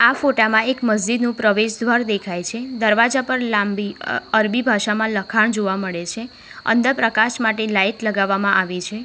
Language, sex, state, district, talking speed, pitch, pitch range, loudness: Gujarati, female, Gujarat, Valsad, 180 wpm, 220 Hz, 205-235 Hz, -19 LUFS